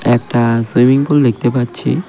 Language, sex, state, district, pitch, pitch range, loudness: Bengali, male, West Bengal, Cooch Behar, 120 Hz, 120-130 Hz, -13 LUFS